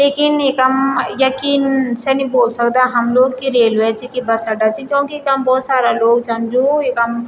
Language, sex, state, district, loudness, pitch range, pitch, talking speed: Garhwali, female, Uttarakhand, Tehri Garhwal, -15 LUFS, 235-270 Hz, 255 Hz, 215 wpm